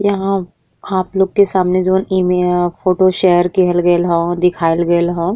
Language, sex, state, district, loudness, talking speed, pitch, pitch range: Bhojpuri, female, Uttar Pradesh, Ghazipur, -14 LUFS, 190 wpm, 180 Hz, 175-190 Hz